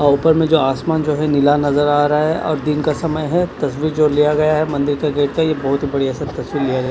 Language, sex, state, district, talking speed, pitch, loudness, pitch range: Hindi, male, Chandigarh, Chandigarh, 305 wpm, 150 Hz, -17 LUFS, 145-155 Hz